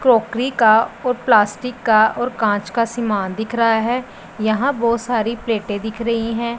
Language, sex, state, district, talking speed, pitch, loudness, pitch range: Hindi, male, Punjab, Pathankot, 175 wpm, 230 Hz, -18 LUFS, 220-240 Hz